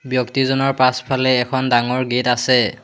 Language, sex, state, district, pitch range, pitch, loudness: Assamese, male, Assam, Hailakandi, 125-130 Hz, 130 Hz, -17 LUFS